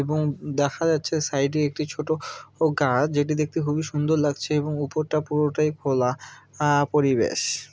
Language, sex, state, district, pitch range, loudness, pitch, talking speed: Bengali, male, West Bengal, Malda, 145-155 Hz, -24 LUFS, 150 Hz, 145 wpm